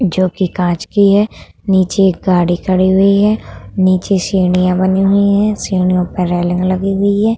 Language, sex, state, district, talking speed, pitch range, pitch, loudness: Hindi, female, Uttar Pradesh, Budaun, 180 wpm, 180-200 Hz, 190 Hz, -13 LUFS